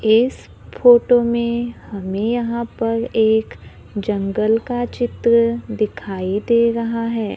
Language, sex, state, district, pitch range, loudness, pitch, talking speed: Hindi, female, Maharashtra, Gondia, 215-235 Hz, -18 LUFS, 230 Hz, 115 wpm